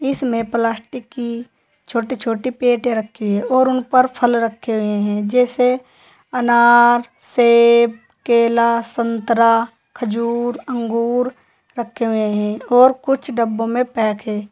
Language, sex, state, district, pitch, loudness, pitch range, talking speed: Hindi, female, Uttar Pradesh, Saharanpur, 235 Hz, -17 LUFS, 230-250 Hz, 130 wpm